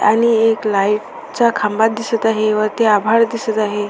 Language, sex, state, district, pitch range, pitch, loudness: Marathi, female, Maharashtra, Sindhudurg, 210-230 Hz, 220 Hz, -16 LUFS